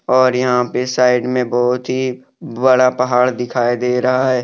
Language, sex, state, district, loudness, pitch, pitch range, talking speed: Hindi, male, Jharkhand, Deoghar, -16 LUFS, 125 Hz, 125-130 Hz, 175 wpm